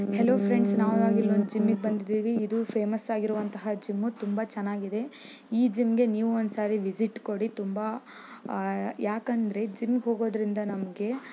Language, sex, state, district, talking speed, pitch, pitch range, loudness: Kannada, female, Karnataka, Belgaum, 150 wpm, 215 Hz, 210-230 Hz, -28 LUFS